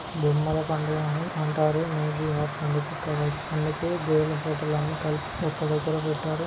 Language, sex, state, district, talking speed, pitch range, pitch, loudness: Telugu, male, Telangana, Nalgonda, 85 wpm, 150-155 Hz, 155 Hz, -27 LUFS